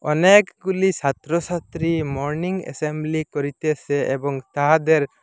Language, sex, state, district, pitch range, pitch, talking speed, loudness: Bengali, male, Assam, Hailakandi, 145-170 Hz, 155 Hz, 80 wpm, -21 LUFS